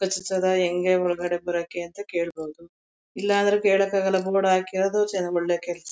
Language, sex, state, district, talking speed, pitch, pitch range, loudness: Kannada, female, Karnataka, Mysore, 100 wpm, 185 Hz, 175-195 Hz, -24 LUFS